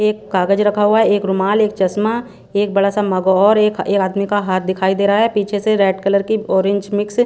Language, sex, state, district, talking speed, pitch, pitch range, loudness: Hindi, female, Haryana, Charkhi Dadri, 240 wpm, 200 Hz, 195-210 Hz, -16 LUFS